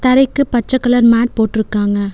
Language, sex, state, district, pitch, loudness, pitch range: Tamil, female, Tamil Nadu, Nilgiris, 235 Hz, -14 LUFS, 220-255 Hz